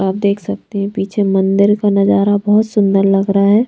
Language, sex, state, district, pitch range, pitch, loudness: Hindi, female, Bihar, Patna, 195-205 Hz, 200 Hz, -14 LUFS